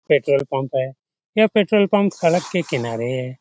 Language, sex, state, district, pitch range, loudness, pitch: Hindi, male, Bihar, Saran, 130-200 Hz, -20 LUFS, 145 Hz